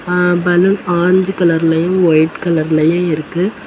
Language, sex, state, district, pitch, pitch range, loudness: Tamil, female, Tamil Nadu, Kanyakumari, 175 Hz, 165-180 Hz, -13 LUFS